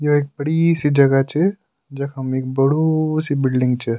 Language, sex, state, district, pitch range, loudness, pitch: Garhwali, male, Uttarakhand, Tehri Garhwal, 135-155 Hz, -18 LUFS, 140 Hz